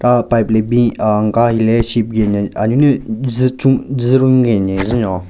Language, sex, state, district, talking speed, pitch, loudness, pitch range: Rengma, male, Nagaland, Kohima, 225 wpm, 115 Hz, -14 LUFS, 110-125 Hz